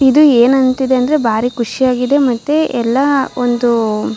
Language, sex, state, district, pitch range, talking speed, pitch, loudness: Kannada, female, Karnataka, Shimoga, 235-270 Hz, 115 wpm, 255 Hz, -13 LUFS